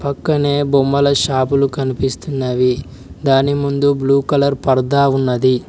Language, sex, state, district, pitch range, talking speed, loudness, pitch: Telugu, male, Telangana, Mahabubabad, 130-140 Hz, 105 wpm, -16 LUFS, 140 Hz